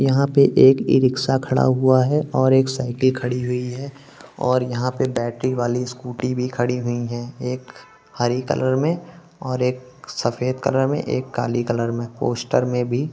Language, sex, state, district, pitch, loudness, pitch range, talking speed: Hindi, male, Uttar Pradesh, Muzaffarnagar, 130 Hz, -20 LUFS, 125-135 Hz, 180 wpm